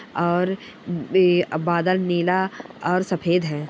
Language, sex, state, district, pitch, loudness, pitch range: Hindi, male, Bihar, Bhagalpur, 180 Hz, -22 LUFS, 170-185 Hz